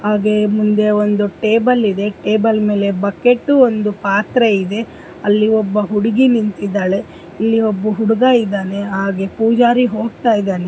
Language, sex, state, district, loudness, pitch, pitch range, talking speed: Kannada, female, Karnataka, Dharwad, -15 LUFS, 210 Hz, 200-225 Hz, 125 wpm